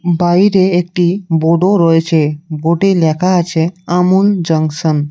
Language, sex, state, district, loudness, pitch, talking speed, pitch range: Bengali, male, West Bengal, Cooch Behar, -12 LUFS, 175 Hz, 115 wpm, 160-185 Hz